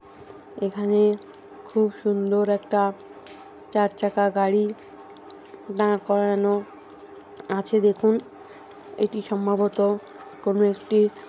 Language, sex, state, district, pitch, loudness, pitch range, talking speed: Bengali, female, West Bengal, North 24 Parganas, 205 Hz, -23 LUFS, 200-210 Hz, 75 wpm